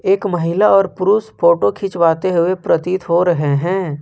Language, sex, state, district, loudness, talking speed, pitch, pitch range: Hindi, male, Jharkhand, Ranchi, -15 LUFS, 165 wpm, 180 Hz, 170-195 Hz